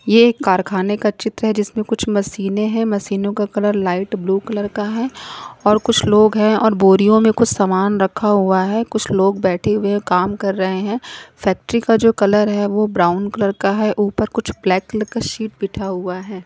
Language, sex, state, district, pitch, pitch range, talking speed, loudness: Hindi, female, Punjab, Kapurthala, 205 Hz, 195-220 Hz, 210 wpm, -17 LUFS